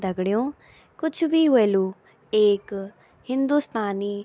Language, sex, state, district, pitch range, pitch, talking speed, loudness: Garhwali, female, Uttarakhand, Tehri Garhwal, 200-275 Hz, 210 Hz, 100 wpm, -23 LUFS